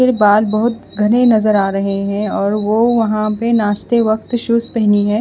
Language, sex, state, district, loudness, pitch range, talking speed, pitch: Hindi, female, Odisha, Khordha, -15 LUFS, 205-230 Hz, 185 wpm, 215 Hz